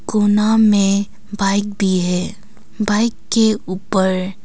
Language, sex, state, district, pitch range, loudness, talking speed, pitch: Hindi, female, Arunachal Pradesh, Longding, 195-210 Hz, -17 LUFS, 110 wpm, 205 Hz